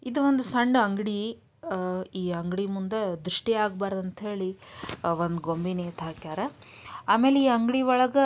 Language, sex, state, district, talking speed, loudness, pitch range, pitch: Kannada, female, Karnataka, Dharwad, 145 wpm, -27 LUFS, 180-240 Hz, 200 Hz